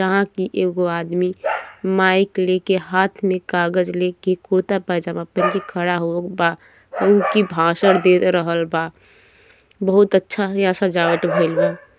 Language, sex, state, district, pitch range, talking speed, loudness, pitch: Bhojpuri, male, Uttar Pradesh, Gorakhpur, 175-195 Hz, 135 wpm, -18 LUFS, 185 Hz